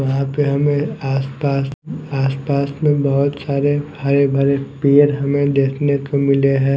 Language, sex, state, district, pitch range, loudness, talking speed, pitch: Hindi, male, Chhattisgarh, Raipur, 135-145 Hz, -17 LUFS, 160 wpm, 140 Hz